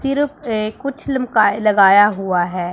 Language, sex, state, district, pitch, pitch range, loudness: Hindi, female, Punjab, Pathankot, 215 Hz, 195-270 Hz, -16 LUFS